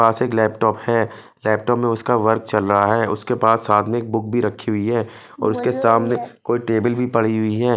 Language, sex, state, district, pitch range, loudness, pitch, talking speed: Hindi, male, Punjab, Fazilka, 110-120 Hz, -19 LUFS, 115 Hz, 215 wpm